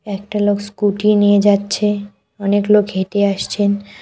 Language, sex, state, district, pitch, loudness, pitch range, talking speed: Bengali, female, West Bengal, Cooch Behar, 205 Hz, -16 LUFS, 200-205 Hz, 135 wpm